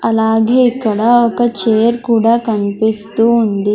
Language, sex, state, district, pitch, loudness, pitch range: Telugu, female, Andhra Pradesh, Sri Satya Sai, 225 Hz, -13 LUFS, 220-235 Hz